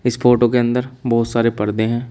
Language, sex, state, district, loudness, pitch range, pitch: Hindi, male, Uttar Pradesh, Shamli, -17 LUFS, 115-125 Hz, 120 Hz